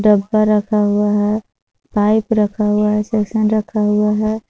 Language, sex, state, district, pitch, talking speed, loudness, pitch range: Hindi, female, Jharkhand, Palamu, 210 Hz, 145 wpm, -16 LUFS, 210-215 Hz